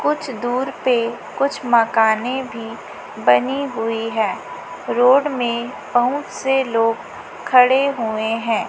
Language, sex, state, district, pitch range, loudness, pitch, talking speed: Hindi, female, Chhattisgarh, Raipur, 225-265 Hz, -18 LUFS, 240 Hz, 115 wpm